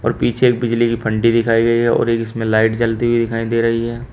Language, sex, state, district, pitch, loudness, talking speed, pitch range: Hindi, male, Uttar Pradesh, Shamli, 115 Hz, -16 LUFS, 275 wpm, 115-120 Hz